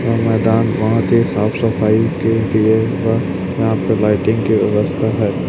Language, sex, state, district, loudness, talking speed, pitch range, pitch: Hindi, male, Chhattisgarh, Raipur, -15 LUFS, 155 wpm, 105-115 Hz, 110 Hz